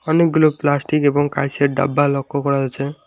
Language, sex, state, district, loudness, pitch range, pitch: Bengali, male, West Bengal, Alipurduar, -18 LUFS, 140-150 Hz, 145 Hz